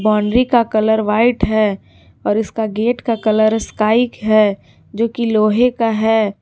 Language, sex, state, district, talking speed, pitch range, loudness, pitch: Hindi, female, Jharkhand, Garhwa, 160 wpm, 215-230 Hz, -16 LUFS, 220 Hz